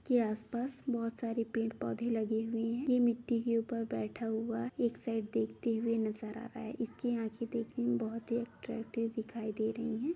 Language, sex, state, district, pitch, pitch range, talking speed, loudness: Hindi, female, Bihar, Jamui, 230 Hz, 225-235 Hz, 200 wpm, -36 LUFS